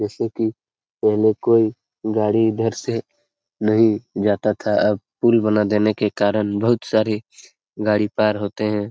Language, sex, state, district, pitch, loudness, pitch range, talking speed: Hindi, male, Bihar, Darbhanga, 110 Hz, -20 LUFS, 105-110 Hz, 150 wpm